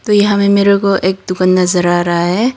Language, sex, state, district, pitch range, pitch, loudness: Hindi, female, Tripura, Dhalai, 180-200 Hz, 190 Hz, -12 LUFS